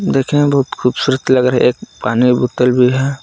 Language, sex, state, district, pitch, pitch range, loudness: Hindi, male, Jharkhand, Palamu, 125 Hz, 125-135 Hz, -14 LUFS